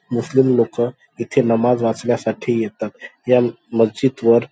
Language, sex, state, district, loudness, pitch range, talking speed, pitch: Marathi, male, Maharashtra, Aurangabad, -18 LUFS, 115-125 Hz, 120 wpm, 120 Hz